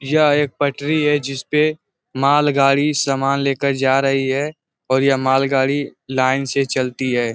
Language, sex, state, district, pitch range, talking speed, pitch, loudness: Hindi, male, Uttar Pradesh, Ghazipur, 135-145 Hz, 155 wpm, 135 Hz, -18 LUFS